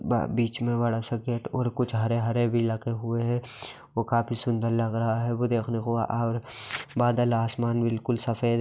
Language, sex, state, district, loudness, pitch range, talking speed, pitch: Hindi, male, Bihar, Saran, -27 LUFS, 115-120 Hz, 190 wpm, 115 Hz